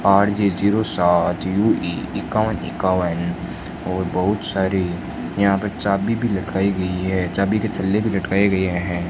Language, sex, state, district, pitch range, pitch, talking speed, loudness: Hindi, male, Rajasthan, Bikaner, 90-100 Hz, 95 Hz, 160 wpm, -20 LUFS